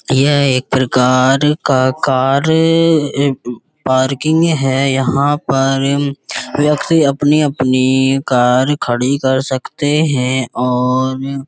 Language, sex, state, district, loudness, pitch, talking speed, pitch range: Hindi, male, Uttar Pradesh, Budaun, -14 LUFS, 135 Hz, 105 wpm, 130-145 Hz